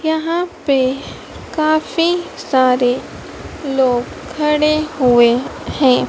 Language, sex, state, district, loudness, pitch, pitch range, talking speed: Hindi, female, Madhya Pradesh, Dhar, -16 LUFS, 290 Hz, 255-315 Hz, 80 wpm